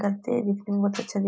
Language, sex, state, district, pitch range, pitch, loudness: Hindi, female, Maharashtra, Nagpur, 200-230 Hz, 200 Hz, -26 LUFS